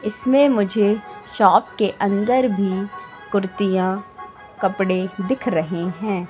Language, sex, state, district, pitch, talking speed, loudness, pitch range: Hindi, female, Madhya Pradesh, Katni, 200 Hz, 105 wpm, -20 LUFS, 185-220 Hz